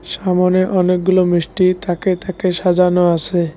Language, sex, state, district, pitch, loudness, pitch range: Bengali, male, West Bengal, Cooch Behar, 180 Hz, -15 LUFS, 175-185 Hz